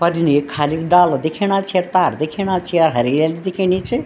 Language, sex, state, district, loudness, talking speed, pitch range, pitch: Garhwali, female, Uttarakhand, Tehri Garhwal, -17 LUFS, 190 wpm, 155-185 Hz, 175 Hz